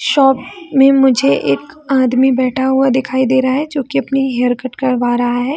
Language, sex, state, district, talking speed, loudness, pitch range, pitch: Hindi, female, Bihar, Jamui, 205 wpm, -14 LUFS, 255-270 Hz, 260 Hz